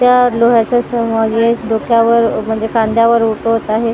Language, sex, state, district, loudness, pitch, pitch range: Marathi, female, Maharashtra, Gondia, -13 LUFS, 230 Hz, 225-235 Hz